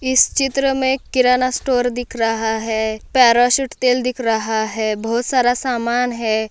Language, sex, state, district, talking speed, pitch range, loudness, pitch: Hindi, female, Maharashtra, Solapur, 155 wpm, 225-255 Hz, -17 LUFS, 245 Hz